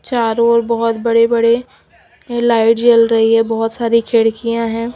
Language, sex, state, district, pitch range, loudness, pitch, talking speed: Hindi, female, Punjab, Pathankot, 230-235 Hz, -14 LUFS, 230 Hz, 155 wpm